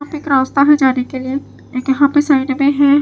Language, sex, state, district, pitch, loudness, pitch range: Hindi, female, Bihar, Katihar, 280 Hz, -14 LUFS, 265-285 Hz